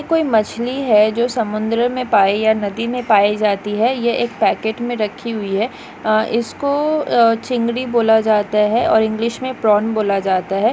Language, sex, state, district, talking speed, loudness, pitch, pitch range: Hindi, female, Goa, North and South Goa, 180 wpm, -17 LUFS, 225 Hz, 210-240 Hz